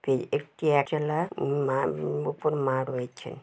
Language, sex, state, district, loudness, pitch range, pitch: Bengali, female, West Bengal, Jalpaiguri, -28 LUFS, 130-150 Hz, 140 Hz